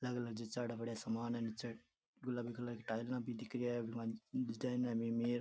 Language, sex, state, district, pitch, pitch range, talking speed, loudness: Rajasthani, male, Rajasthan, Churu, 120 Hz, 115-120 Hz, 190 wpm, -43 LUFS